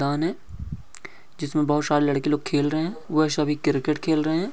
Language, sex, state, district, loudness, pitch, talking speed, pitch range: Hindi, male, Andhra Pradesh, Krishna, -24 LUFS, 150 Hz, 170 wpm, 145-155 Hz